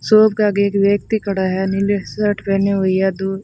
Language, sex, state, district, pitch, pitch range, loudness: Hindi, female, Rajasthan, Bikaner, 200 Hz, 195-205 Hz, -17 LUFS